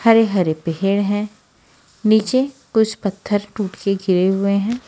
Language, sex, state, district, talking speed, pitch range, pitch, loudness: Hindi, female, Bihar, West Champaran, 150 wpm, 195-220 Hz, 205 Hz, -19 LUFS